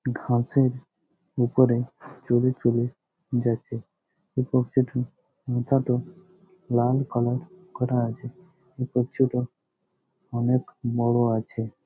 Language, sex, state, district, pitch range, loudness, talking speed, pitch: Bengali, male, West Bengal, Jhargram, 120-140 Hz, -25 LUFS, 60 wpm, 125 Hz